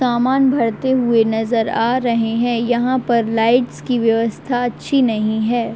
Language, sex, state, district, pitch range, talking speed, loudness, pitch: Hindi, female, Uttar Pradesh, Deoria, 225-250 Hz, 155 wpm, -17 LUFS, 235 Hz